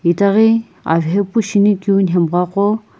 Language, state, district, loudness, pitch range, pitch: Sumi, Nagaland, Kohima, -15 LUFS, 180-210 Hz, 200 Hz